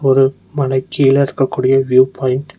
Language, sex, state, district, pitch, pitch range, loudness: Tamil, male, Tamil Nadu, Nilgiris, 135 Hz, 130-135 Hz, -14 LUFS